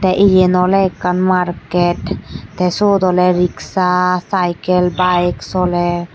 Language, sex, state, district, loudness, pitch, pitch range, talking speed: Chakma, male, Tripura, Dhalai, -15 LUFS, 180 Hz, 180-185 Hz, 115 wpm